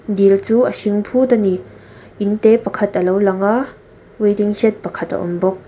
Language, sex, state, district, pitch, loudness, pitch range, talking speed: Mizo, female, Mizoram, Aizawl, 205 Hz, -16 LUFS, 190-220 Hz, 210 wpm